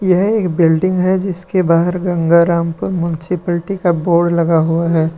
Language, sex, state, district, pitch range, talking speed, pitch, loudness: Hindi, male, Uttar Pradesh, Lalitpur, 170-185 Hz, 150 wpm, 170 Hz, -15 LUFS